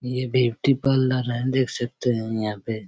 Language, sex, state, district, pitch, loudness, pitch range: Hindi, male, Chhattisgarh, Raigarh, 125 Hz, -23 LUFS, 115-130 Hz